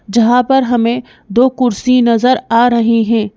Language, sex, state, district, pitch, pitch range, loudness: Hindi, female, Madhya Pradesh, Bhopal, 240 Hz, 230-250 Hz, -12 LUFS